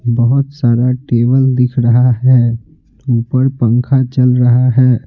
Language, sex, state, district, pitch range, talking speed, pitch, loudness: Hindi, male, Bihar, Patna, 120-130 Hz, 130 wpm, 125 Hz, -12 LUFS